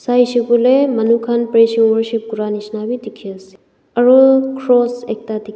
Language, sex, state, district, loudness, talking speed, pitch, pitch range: Nagamese, female, Nagaland, Dimapur, -14 LUFS, 140 wpm, 230 Hz, 220-245 Hz